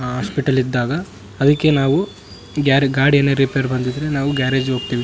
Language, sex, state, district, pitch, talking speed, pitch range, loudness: Kannada, male, Karnataka, Raichur, 135 Hz, 155 wpm, 125-140 Hz, -17 LUFS